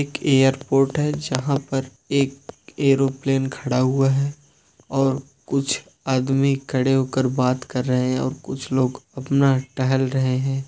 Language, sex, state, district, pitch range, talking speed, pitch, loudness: Hindi, male, Uttar Pradesh, Budaun, 130-135 Hz, 145 wpm, 135 Hz, -21 LUFS